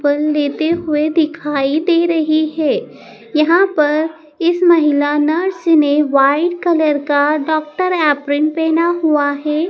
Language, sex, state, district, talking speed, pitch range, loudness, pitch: Hindi, male, Madhya Pradesh, Dhar, 130 wpm, 295-335 Hz, -15 LUFS, 310 Hz